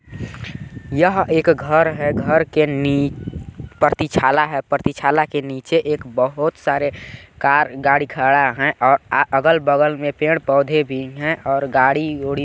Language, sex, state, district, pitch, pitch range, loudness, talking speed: Hindi, male, Chhattisgarh, Balrampur, 145 Hz, 135-155 Hz, -17 LUFS, 160 wpm